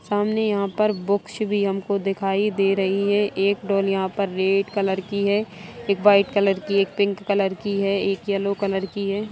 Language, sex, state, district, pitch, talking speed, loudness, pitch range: Hindi, male, Bihar, Saran, 200 Hz, 210 wpm, -22 LUFS, 195-205 Hz